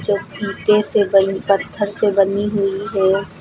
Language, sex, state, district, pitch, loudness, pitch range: Hindi, female, Uttar Pradesh, Lucknow, 200 Hz, -17 LUFS, 195-205 Hz